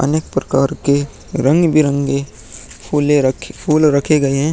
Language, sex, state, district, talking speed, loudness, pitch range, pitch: Hindi, male, Uttar Pradesh, Muzaffarnagar, 120 wpm, -15 LUFS, 135-150 Hz, 140 Hz